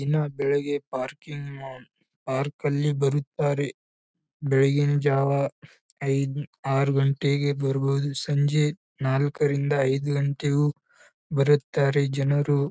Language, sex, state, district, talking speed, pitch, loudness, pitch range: Kannada, male, Karnataka, Bijapur, 95 wpm, 140 Hz, -25 LUFS, 140-145 Hz